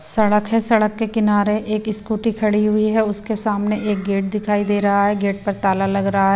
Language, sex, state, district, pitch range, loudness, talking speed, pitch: Hindi, female, Bihar, Patna, 200-215 Hz, -18 LUFS, 225 wpm, 210 Hz